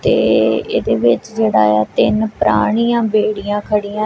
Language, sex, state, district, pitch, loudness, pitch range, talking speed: Punjabi, female, Punjab, Kapurthala, 210 Hz, -15 LUFS, 205-220 Hz, 135 wpm